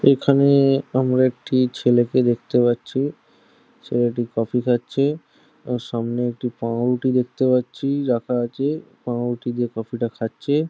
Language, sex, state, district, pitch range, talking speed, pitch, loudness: Bengali, male, West Bengal, Jhargram, 120-135 Hz, 125 wpm, 125 Hz, -21 LUFS